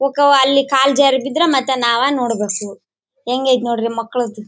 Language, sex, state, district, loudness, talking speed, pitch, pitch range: Kannada, female, Karnataka, Bellary, -15 LUFS, 175 wpm, 260 Hz, 235-275 Hz